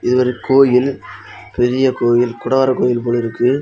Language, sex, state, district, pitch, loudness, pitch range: Tamil, male, Tamil Nadu, Kanyakumari, 125 Hz, -15 LUFS, 120-130 Hz